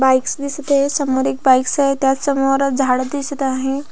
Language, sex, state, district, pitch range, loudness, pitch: Marathi, female, Maharashtra, Pune, 265-280 Hz, -17 LUFS, 270 Hz